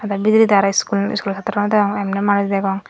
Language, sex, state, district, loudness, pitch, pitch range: Chakma, female, Tripura, Dhalai, -17 LUFS, 200 Hz, 195-210 Hz